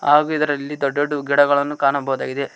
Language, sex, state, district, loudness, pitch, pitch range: Kannada, male, Karnataka, Koppal, -19 LUFS, 145 Hz, 140-145 Hz